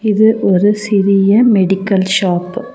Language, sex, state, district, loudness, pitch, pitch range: Tamil, female, Tamil Nadu, Nilgiris, -12 LUFS, 200 Hz, 195-215 Hz